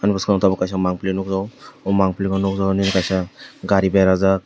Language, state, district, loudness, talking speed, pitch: Kokborok, Tripura, West Tripura, -19 LUFS, 175 wpm, 95 Hz